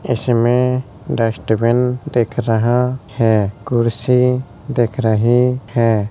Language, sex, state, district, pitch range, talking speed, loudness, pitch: Hindi, male, Uttar Pradesh, Hamirpur, 115-125 Hz, 90 wpm, -17 LUFS, 120 Hz